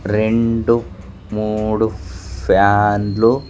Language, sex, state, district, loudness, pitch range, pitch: Telugu, male, Andhra Pradesh, Sri Satya Sai, -17 LUFS, 95-115 Hz, 105 Hz